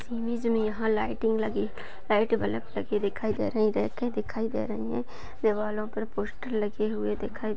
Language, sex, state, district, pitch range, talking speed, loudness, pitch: Hindi, female, Maharashtra, Nagpur, 210-225 Hz, 150 wpm, -29 LUFS, 215 Hz